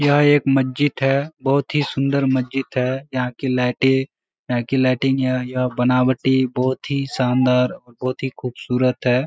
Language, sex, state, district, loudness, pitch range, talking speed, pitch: Hindi, male, Bihar, Kishanganj, -20 LUFS, 125-135 Hz, 155 wpm, 130 Hz